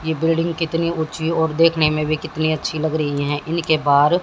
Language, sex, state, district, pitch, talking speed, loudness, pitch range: Hindi, female, Haryana, Jhajjar, 160 Hz, 210 wpm, -19 LUFS, 155-165 Hz